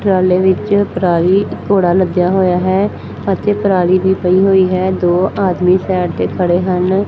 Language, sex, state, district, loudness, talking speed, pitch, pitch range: Punjabi, female, Punjab, Fazilka, -13 LUFS, 160 wpm, 185 Hz, 180-195 Hz